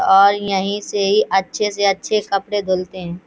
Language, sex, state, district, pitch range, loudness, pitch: Hindi, female, Uttar Pradesh, Hamirpur, 190-205 Hz, -18 LUFS, 200 Hz